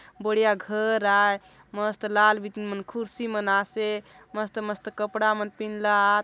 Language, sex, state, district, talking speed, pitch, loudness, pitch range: Halbi, female, Chhattisgarh, Bastar, 155 wpm, 210 Hz, -25 LUFS, 205-215 Hz